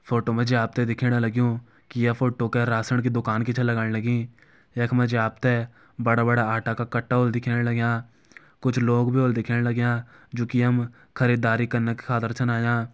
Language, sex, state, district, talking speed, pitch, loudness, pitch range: Garhwali, male, Uttarakhand, Uttarkashi, 210 wpm, 120 Hz, -24 LUFS, 115-125 Hz